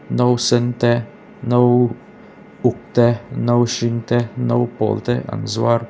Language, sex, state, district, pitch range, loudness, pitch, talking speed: Mizo, male, Mizoram, Aizawl, 115-120 Hz, -18 LUFS, 120 Hz, 145 wpm